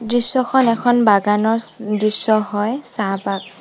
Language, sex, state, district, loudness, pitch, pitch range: Assamese, female, Assam, Sonitpur, -16 LUFS, 220 Hz, 210-240 Hz